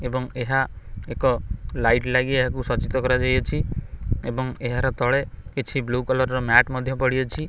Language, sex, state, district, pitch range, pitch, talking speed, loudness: Odia, male, Odisha, Khordha, 125-130 Hz, 130 Hz, 150 wpm, -23 LUFS